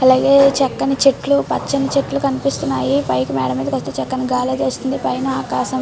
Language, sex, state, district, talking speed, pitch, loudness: Telugu, female, Andhra Pradesh, Srikakulam, 145 wpm, 260 Hz, -17 LUFS